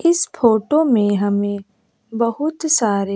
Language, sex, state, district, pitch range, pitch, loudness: Hindi, female, Bihar, West Champaran, 205-305 Hz, 225 Hz, -17 LUFS